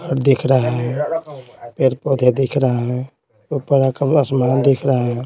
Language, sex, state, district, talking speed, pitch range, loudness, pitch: Hindi, male, Bihar, Patna, 150 wpm, 125-140 Hz, -17 LUFS, 130 Hz